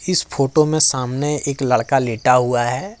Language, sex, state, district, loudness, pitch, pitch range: Hindi, male, Jharkhand, Ranchi, -17 LUFS, 135 Hz, 125-155 Hz